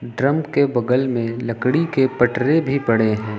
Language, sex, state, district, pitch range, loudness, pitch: Hindi, male, Uttar Pradesh, Lucknow, 115-140 Hz, -19 LUFS, 125 Hz